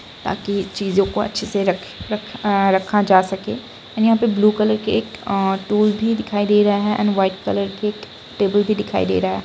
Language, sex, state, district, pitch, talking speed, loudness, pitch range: Hindi, female, Bihar, Saran, 205 Hz, 195 wpm, -19 LUFS, 195-215 Hz